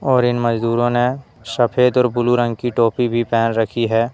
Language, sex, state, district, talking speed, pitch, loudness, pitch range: Hindi, male, Jharkhand, Deoghar, 200 wpm, 120 Hz, -17 LUFS, 115-125 Hz